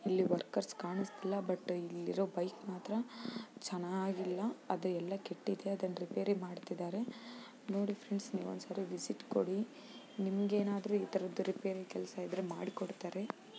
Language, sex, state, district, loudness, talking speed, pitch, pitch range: Kannada, female, Karnataka, Chamarajanagar, -39 LUFS, 130 wpm, 195 Hz, 180-210 Hz